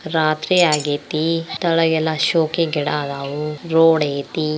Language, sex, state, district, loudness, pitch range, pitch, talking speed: Kannada, female, Karnataka, Belgaum, -18 LUFS, 150-165 Hz, 155 Hz, 90 wpm